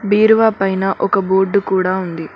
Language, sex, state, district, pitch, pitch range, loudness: Telugu, female, Telangana, Mahabubabad, 195 Hz, 190-205 Hz, -15 LUFS